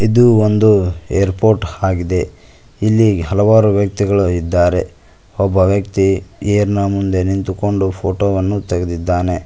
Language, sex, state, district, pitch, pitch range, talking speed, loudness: Kannada, male, Karnataka, Koppal, 95 Hz, 90-105 Hz, 100 wpm, -15 LUFS